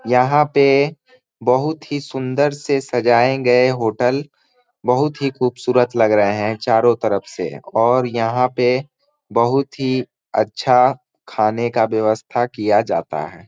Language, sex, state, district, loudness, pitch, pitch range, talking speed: Hindi, male, Jharkhand, Sahebganj, -18 LUFS, 125 Hz, 115-140 Hz, 135 wpm